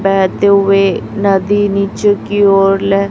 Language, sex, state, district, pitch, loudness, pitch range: Hindi, female, Chhattisgarh, Raipur, 200 Hz, -12 LUFS, 195-205 Hz